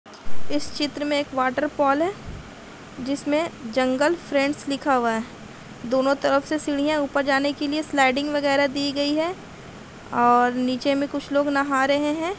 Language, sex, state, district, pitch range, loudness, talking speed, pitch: Hindi, female, Bihar, Gaya, 270-295 Hz, -23 LUFS, 170 wpm, 285 Hz